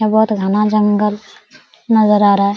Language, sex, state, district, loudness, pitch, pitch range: Hindi, female, Uttar Pradesh, Hamirpur, -14 LUFS, 210 Hz, 205-215 Hz